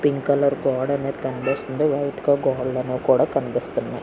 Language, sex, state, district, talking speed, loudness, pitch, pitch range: Telugu, female, Andhra Pradesh, Srikakulam, 150 wpm, -22 LUFS, 135 Hz, 130-140 Hz